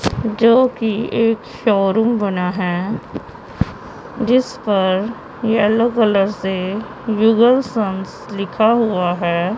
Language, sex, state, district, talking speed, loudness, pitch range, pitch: Hindi, female, Punjab, Pathankot, 95 wpm, -17 LUFS, 195-230 Hz, 215 Hz